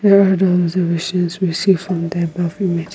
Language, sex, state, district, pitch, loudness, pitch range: English, female, Nagaland, Kohima, 180 Hz, -17 LUFS, 170-190 Hz